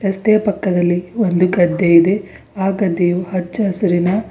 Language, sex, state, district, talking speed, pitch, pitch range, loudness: Kannada, female, Karnataka, Bidar, 110 wpm, 185 Hz, 175-200 Hz, -16 LUFS